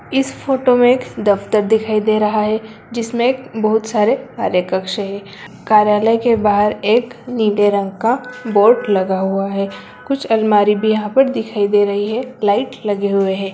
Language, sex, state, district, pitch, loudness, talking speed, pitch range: Hindi, female, Bihar, Begusarai, 215 Hz, -16 LUFS, 175 wpm, 205-235 Hz